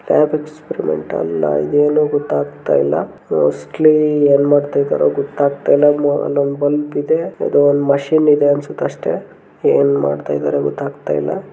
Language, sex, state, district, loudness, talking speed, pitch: Kannada, male, Karnataka, Gulbarga, -16 LUFS, 120 wpm, 145 Hz